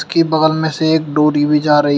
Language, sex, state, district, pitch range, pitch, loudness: Hindi, male, Uttar Pradesh, Shamli, 150-160 Hz, 155 Hz, -14 LUFS